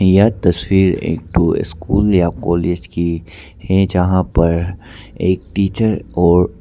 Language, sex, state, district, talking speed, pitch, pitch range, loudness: Hindi, male, Arunachal Pradesh, Papum Pare, 125 wpm, 90 Hz, 85-95 Hz, -16 LUFS